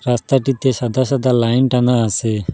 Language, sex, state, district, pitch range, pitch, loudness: Bengali, male, Assam, Hailakandi, 120-130 Hz, 125 Hz, -16 LUFS